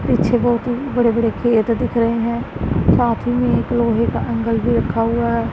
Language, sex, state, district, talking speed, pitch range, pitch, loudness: Hindi, female, Punjab, Pathankot, 205 wpm, 225-240 Hz, 230 Hz, -18 LUFS